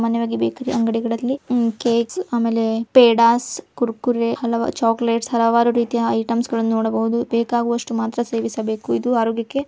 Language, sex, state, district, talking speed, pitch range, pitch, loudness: Kannada, female, Karnataka, Bijapur, 125 wpm, 230-235 Hz, 230 Hz, -19 LUFS